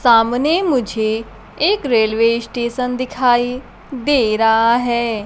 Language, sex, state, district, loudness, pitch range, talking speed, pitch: Hindi, female, Bihar, Kaimur, -16 LUFS, 225-255 Hz, 105 wpm, 240 Hz